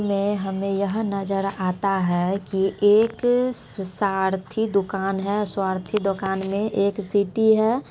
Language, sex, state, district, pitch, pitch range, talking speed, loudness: Maithili, female, Bihar, Supaul, 200 Hz, 195-210 Hz, 130 wpm, -23 LUFS